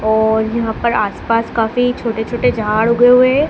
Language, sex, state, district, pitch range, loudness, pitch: Hindi, female, Madhya Pradesh, Dhar, 220-245 Hz, -15 LUFS, 230 Hz